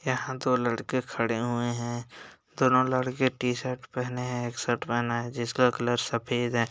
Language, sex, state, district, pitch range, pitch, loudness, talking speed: Hindi, male, Uttar Pradesh, Hamirpur, 120-130 Hz, 120 Hz, -28 LUFS, 180 wpm